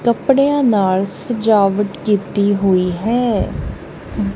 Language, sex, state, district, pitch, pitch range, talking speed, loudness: Punjabi, female, Punjab, Kapurthala, 205 Hz, 195-235 Hz, 85 wpm, -16 LUFS